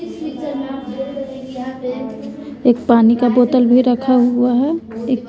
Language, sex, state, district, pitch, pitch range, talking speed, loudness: Hindi, female, Bihar, West Champaran, 255 Hz, 245-270 Hz, 90 wpm, -16 LUFS